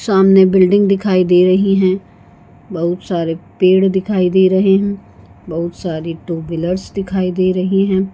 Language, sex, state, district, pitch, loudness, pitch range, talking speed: Hindi, female, Goa, North and South Goa, 185 Hz, -14 LUFS, 175-195 Hz, 155 wpm